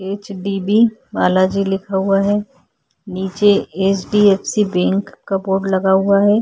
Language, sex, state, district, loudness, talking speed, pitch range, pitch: Hindi, female, Chhattisgarh, Korba, -16 LUFS, 120 wpm, 190-205 Hz, 195 Hz